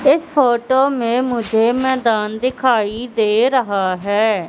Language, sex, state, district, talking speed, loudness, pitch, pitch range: Hindi, female, Madhya Pradesh, Katni, 120 wpm, -16 LUFS, 235 Hz, 215-260 Hz